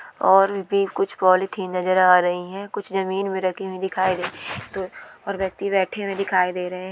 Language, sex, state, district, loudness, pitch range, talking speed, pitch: Hindi, female, Bihar, East Champaran, -22 LUFS, 185-195 Hz, 215 wpm, 190 Hz